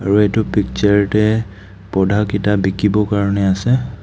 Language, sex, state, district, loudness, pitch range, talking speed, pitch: Assamese, male, Assam, Kamrup Metropolitan, -16 LUFS, 100-105 Hz, 135 wpm, 105 Hz